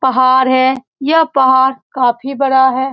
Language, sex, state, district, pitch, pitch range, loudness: Hindi, female, Bihar, Saran, 265 Hz, 260-270 Hz, -12 LUFS